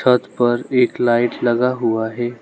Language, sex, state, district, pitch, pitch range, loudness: Hindi, male, Arunachal Pradesh, Lower Dibang Valley, 120 Hz, 120-125 Hz, -18 LUFS